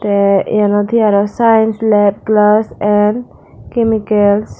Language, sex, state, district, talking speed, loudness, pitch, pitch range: Chakma, female, Tripura, Dhalai, 115 wpm, -12 LUFS, 210 Hz, 205-220 Hz